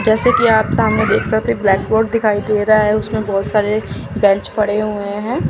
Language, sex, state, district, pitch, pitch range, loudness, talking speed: Hindi, female, Chandigarh, Chandigarh, 215 Hz, 205-220 Hz, -15 LUFS, 195 wpm